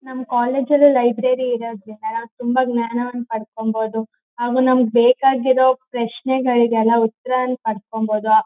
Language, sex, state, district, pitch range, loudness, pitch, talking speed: Kannada, female, Karnataka, Shimoga, 225-255 Hz, -18 LUFS, 240 Hz, 105 wpm